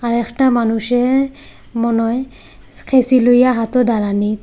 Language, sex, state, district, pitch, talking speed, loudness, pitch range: Bengali, female, Assam, Hailakandi, 240 Hz, 110 wpm, -15 LUFS, 230-255 Hz